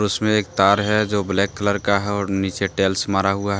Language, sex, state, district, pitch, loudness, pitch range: Hindi, male, Jharkhand, Deoghar, 100 Hz, -20 LUFS, 95-105 Hz